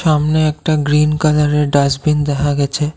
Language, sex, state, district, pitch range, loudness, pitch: Bengali, male, Assam, Kamrup Metropolitan, 145-155 Hz, -15 LUFS, 150 Hz